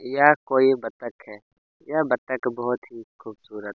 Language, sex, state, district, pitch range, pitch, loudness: Hindi, male, Chhattisgarh, Kabirdham, 110-135 Hz, 125 Hz, -22 LUFS